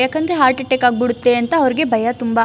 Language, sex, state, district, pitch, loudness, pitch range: Kannada, female, Karnataka, Chamarajanagar, 250 Hz, -16 LUFS, 240-265 Hz